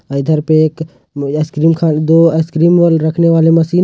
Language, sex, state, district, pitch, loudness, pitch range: Hindi, male, Jharkhand, Ranchi, 160 Hz, -12 LUFS, 155-165 Hz